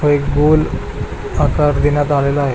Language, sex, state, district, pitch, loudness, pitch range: Marathi, male, Maharashtra, Pune, 145 Hz, -16 LUFS, 140-150 Hz